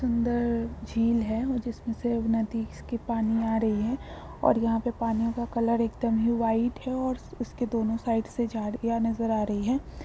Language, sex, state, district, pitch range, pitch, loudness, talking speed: Hindi, female, Bihar, Supaul, 225-235 Hz, 230 Hz, -28 LUFS, 185 wpm